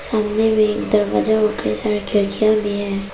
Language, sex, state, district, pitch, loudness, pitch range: Hindi, female, Arunachal Pradesh, Papum Pare, 210 Hz, -17 LUFS, 205-215 Hz